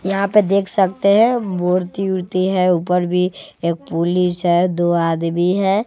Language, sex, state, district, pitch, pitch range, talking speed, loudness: Hindi, male, Bihar, West Champaran, 180 Hz, 175-195 Hz, 165 wpm, -17 LUFS